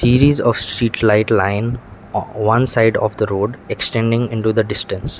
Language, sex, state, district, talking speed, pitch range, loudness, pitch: English, male, Sikkim, Gangtok, 175 wpm, 105-120 Hz, -17 LUFS, 110 Hz